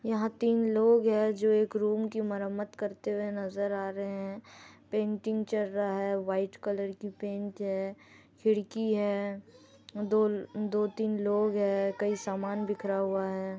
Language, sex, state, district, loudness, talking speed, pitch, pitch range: Hindi, female, Jharkhand, Jamtara, -31 LUFS, 165 wpm, 205 Hz, 200-215 Hz